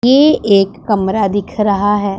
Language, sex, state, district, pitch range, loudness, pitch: Hindi, male, Punjab, Pathankot, 200-215 Hz, -13 LUFS, 205 Hz